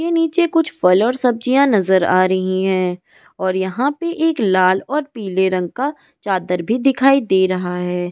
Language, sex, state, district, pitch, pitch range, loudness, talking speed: Hindi, female, Goa, North and South Goa, 190 Hz, 185-275 Hz, -17 LUFS, 185 wpm